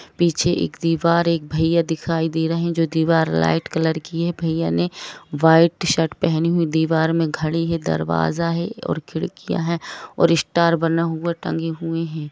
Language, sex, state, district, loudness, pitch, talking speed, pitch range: Hindi, female, Jharkhand, Jamtara, -20 LUFS, 165 Hz, 175 wpm, 160-170 Hz